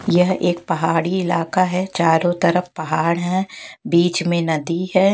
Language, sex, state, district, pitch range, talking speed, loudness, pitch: Hindi, female, Chhattisgarh, Raipur, 165-185 Hz, 150 wpm, -19 LUFS, 175 Hz